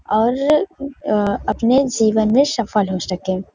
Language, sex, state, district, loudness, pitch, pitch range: Hindi, female, Uttar Pradesh, Varanasi, -18 LUFS, 225 Hz, 205-275 Hz